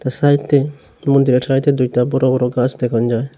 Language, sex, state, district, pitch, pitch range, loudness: Bengali, male, Tripura, Unakoti, 130 Hz, 125-140 Hz, -16 LUFS